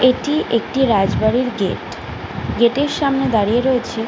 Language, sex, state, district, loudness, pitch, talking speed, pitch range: Bengali, female, West Bengal, Jhargram, -18 LUFS, 245 Hz, 145 wpm, 225-270 Hz